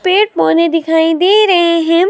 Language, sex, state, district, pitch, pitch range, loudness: Hindi, female, Himachal Pradesh, Shimla, 335 Hz, 325-375 Hz, -11 LUFS